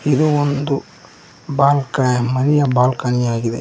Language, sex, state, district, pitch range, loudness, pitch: Kannada, male, Karnataka, Koppal, 125-145 Hz, -17 LUFS, 140 Hz